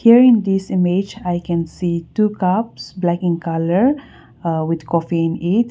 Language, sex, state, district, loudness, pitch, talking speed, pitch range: English, female, Nagaland, Kohima, -18 LUFS, 175 Hz, 170 wpm, 165-210 Hz